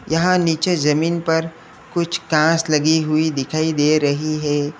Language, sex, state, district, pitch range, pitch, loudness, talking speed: Hindi, male, Uttar Pradesh, Lalitpur, 150-165 Hz, 155 Hz, -18 LUFS, 150 wpm